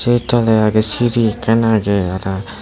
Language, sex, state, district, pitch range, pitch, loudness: Chakma, male, Tripura, West Tripura, 105-120 Hz, 110 Hz, -15 LUFS